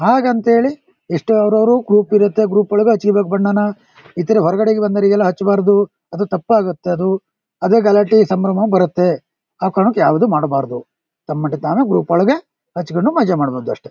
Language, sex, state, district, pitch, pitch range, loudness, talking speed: Kannada, male, Karnataka, Shimoga, 205 Hz, 175-220 Hz, -15 LUFS, 150 wpm